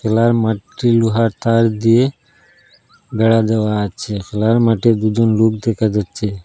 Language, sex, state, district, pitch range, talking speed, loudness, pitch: Bengali, male, Assam, Hailakandi, 110-115 Hz, 130 wpm, -16 LUFS, 115 Hz